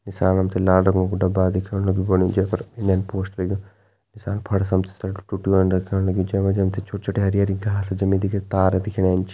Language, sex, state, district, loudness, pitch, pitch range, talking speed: Hindi, male, Uttarakhand, Tehri Garhwal, -21 LUFS, 95 Hz, 95-100 Hz, 205 wpm